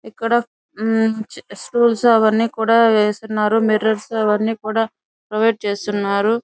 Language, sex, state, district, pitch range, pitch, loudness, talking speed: Telugu, female, Andhra Pradesh, Chittoor, 215-230 Hz, 220 Hz, -18 LUFS, 100 wpm